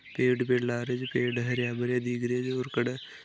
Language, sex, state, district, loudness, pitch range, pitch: Marwari, male, Rajasthan, Nagaur, -29 LUFS, 120-125 Hz, 125 Hz